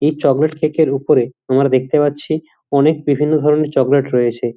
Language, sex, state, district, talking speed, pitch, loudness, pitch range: Bengali, male, West Bengal, Jhargram, 170 wpm, 145 Hz, -15 LUFS, 135-155 Hz